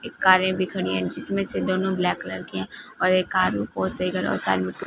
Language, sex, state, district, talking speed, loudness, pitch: Hindi, female, Punjab, Fazilka, 245 wpm, -23 LUFS, 185 Hz